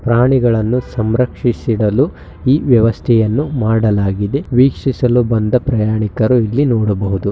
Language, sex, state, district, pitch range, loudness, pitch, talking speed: Kannada, male, Karnataka, Shimoga, 110-125 Hz, -14 LUFS, 120 Hz, 90 wpm